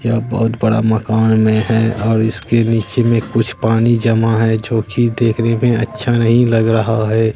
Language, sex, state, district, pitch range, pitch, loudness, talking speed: Hindi, male, Bihar, Katihar, 110-115 Hz, 115 Hz, -14 LUFS, 185 wpm